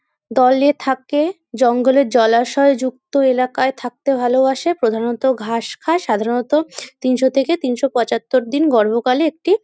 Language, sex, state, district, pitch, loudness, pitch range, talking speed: Bengali, female, West Bengal, North 24 Parganas, 260 Hz, -17 LUFS, 245-280 Hz, 120 wpm